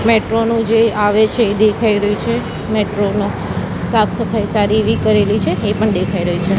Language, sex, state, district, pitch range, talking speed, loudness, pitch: Gujarati, female, Gujarat, Gandhinagar, 205-220 Hz, 190 wpm, -15 LUFS, 210 Hz